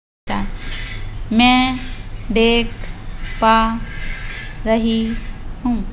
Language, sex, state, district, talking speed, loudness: Hindi, female, Madhya Pradesh, Bhopal, 50 wpm, -18 LUFS